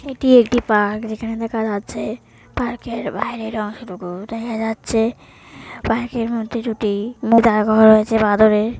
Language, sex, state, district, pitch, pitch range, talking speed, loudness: Bengali, female, West Bengal, Jhargram, 225 Hz, 215-235 Hz, 130 wpm, -18 LUFS